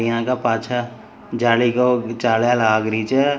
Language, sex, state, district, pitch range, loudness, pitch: Marwari, male, Rajasthan, Nagaur, 115-125 Hz, -19 LUFS, 120 Hz